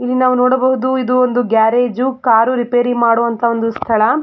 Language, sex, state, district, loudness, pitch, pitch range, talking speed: Kannada, female, Karnataka, Mysore, -14 LUFS, 245 Hz, 230-255 Hz, 140 wpm